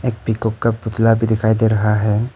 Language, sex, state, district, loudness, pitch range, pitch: Hindi, male, Arunachal Pradesh, Papum Pare, -17 LUFS, 110-115 Hz, 110 Hz